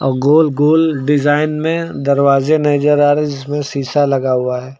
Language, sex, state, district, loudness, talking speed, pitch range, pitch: Hindi, male, Uttar Pradesh, Lucknow, -14 LUFS, 165 wpm, 135-150 Hz, 145 Hz